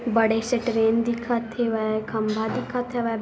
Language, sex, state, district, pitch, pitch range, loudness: Chhattisgarhi, female, Chhattisgarh, Bilaspur, 230 Hz, 220-235 Hz, -24 LUFS